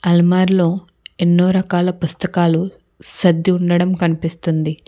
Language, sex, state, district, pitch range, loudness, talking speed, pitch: Telugu, female, Telangana, Hyderabad, 170-185 Hz, -16 LUFS, 85 wpm, 175 Hz